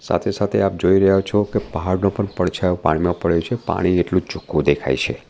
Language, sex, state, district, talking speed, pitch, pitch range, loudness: Gujarati, male, Gujarat, Valsad, 215 wpm, 90 Hz, 85-100 Hz, -19 LUFS